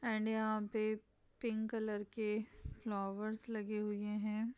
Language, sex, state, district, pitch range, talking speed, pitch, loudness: Hindi, female, Bihar, Saharsa, 210-220 Hz, 130 wpm, 215 Hz, -40 LUFS